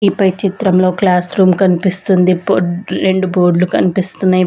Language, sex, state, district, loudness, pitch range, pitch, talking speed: Telugu, female, Andhra Pradesh, Sri Satya Sai, -13 LUFS, 180-190 Hz, 185 Hz, 135 wpm